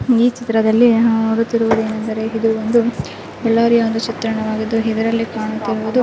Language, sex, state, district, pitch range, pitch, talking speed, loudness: Kannada, female, Karnataka, Bellary, 220-230 Hz, 225 Hz, 110 wpm, -17 LUFS